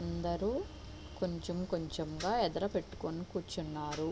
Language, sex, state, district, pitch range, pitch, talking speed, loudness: Telugu, female, Andhra Pradesh, Visakhapatnam, 160-185 Hz, 175 Hz, 85 wpm, -37 LUFS